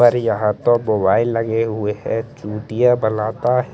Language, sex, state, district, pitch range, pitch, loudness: Hindi, male, Chandigarh, Chandigarh, 105-120 Hz, 115 Hz, -18 LUFS